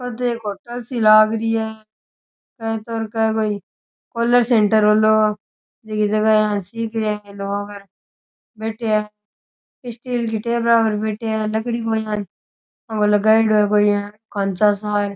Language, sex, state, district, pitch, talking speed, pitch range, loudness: Rajasthani, male, Rajasthan, Churu, 215 Hz, 150 wpm, 210-225 Hz, -19 LUFS